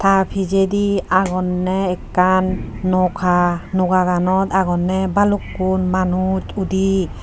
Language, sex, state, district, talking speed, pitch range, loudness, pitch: Chakma, female, Tripura, Unakoti, 85 wpm, 185-195 Hz, -18 LUFS, 185 Hz